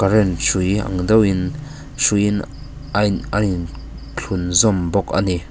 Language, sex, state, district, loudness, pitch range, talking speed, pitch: Mizo, male, Mizoram, Aizawl, -18 LUFS, 90-110 Hz, 120 wpm, 100 Hz